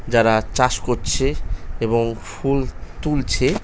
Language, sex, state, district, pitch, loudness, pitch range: Bengali, male, West Bengal, North 24 Parganas, 115 Hz, -21 LUFS, 110-135 Hz